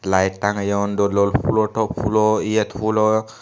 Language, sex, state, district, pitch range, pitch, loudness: Chakma, male, Tripura, Unakoti, 100-110 Hz, 105 Hz, -19 LUFS